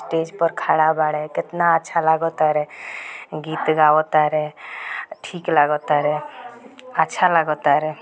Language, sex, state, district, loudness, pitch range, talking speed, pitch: Bhojpuri, female, Bihar, Gopalganj, -19 LUFS, 150-165 Hz, 135 wpm, 155 Hz